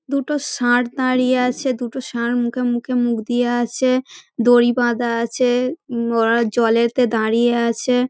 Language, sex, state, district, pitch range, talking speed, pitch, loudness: Bengali, female, West Bengal, Dakshin Dinajpur, 235-255 Hz, 125 wpm, 245 Hz, -18 LUFS